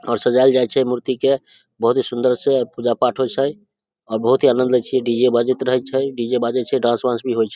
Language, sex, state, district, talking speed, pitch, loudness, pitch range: Maithili, male, Bihar, Samastipur, 245 wpm, 125 Hz, -18 LUFS, 120-130 Hz